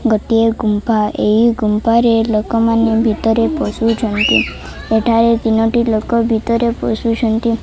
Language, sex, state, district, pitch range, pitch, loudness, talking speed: Odia, female, Odisha, Malkangiri, 220-230 Hz, 225 Hz, -14 LUFS, 100 wpm